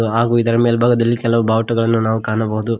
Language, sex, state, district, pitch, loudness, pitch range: Kannada, male, Karnataka, Koppal, 115 Hz, -16 LUFS, 110-115 Hz